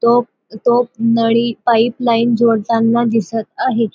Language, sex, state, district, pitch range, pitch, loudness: Marathi, female, Maharashtra, Dhule, 225-235 Hz, 230 Hz, -15 LUFS